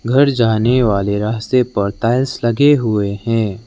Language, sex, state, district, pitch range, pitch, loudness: Hindi, male, Arunachal Pradesh, Lower Dibang Valley, 105-125 Hz, 115 Hz, -15 LUFS